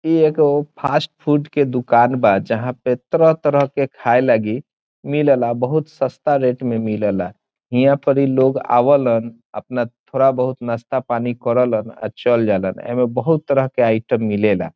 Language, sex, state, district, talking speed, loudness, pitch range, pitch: Bhojpuri, male, Bihar, Saran, 165 wpm, -17 LUFS, 115-140 Hz, 125 Hz